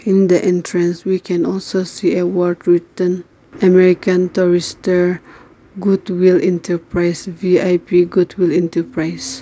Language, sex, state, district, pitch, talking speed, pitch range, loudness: English, female, Nagaland, Kohima, 180 Hz, 110 wpm, 175-185 Hz, -16 LUFS